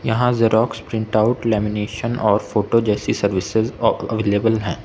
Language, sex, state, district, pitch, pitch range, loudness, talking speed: Hindi, male, Arunachal Pradesh, Lower Dibang Valley, 110 Hz, 105-115 Hz, -19 LUFS, 150 wpm